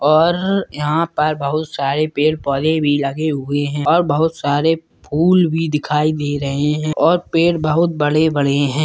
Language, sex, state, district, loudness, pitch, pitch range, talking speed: Hindi, male, Bihar, Purnia, -17 LUFS, 155 Hz, 145-160 Hz, 165 wpm